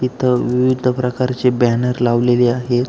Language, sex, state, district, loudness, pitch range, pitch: Marathi, male, Maharashtra, Aurangabad, -16 LUFS, 120-125 Hz, 125 Hz